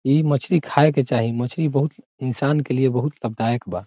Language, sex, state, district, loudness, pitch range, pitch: Bhojpuri, male, Bihar, Saran, -21 LUFS, 120-145 Hz, 135 Hz